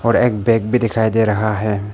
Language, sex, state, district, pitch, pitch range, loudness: Hindi, male, Arunachal Pradesh, Papum Pare, 110 Hz, 105-115 Hz, -17 LUFS